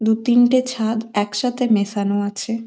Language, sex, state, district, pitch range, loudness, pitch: Bengali, female, West Bengal, Malda, 205-245 Hz, -19 LUFS, 225 Hz